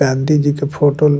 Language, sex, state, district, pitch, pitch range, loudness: Bajjika, male, Bihar, Vaishali, 145 Hz, 140-150 Hz, -15 LUFS